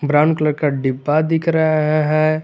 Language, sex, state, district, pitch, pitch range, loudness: Hindi, male, Jharkhand, Garhwa, 155 Hz, 150-155 Hz, -17 LUFS